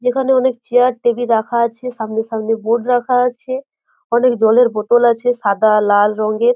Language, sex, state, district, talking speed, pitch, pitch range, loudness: Bengali, female, West Bengal, Jhargram, 175 wpm, 240 Hz, 220-250 Hz, -15 LUFS